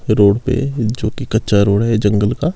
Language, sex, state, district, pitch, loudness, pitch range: Hindi, male, Himachal Pradesh, Shimla, 110 Hz, -15 LUFS, 105-130 Hz